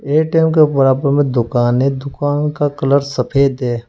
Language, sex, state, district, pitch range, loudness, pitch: Hindi, male, Uttar Pradesh, Saharanpur, 130-145 Hz, -15 LUFS, 140 Hz